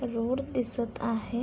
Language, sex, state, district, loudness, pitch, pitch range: Marathi, female, Maharashtra, Pune, -31 LUFS, 240 Hz, 230-250 Hz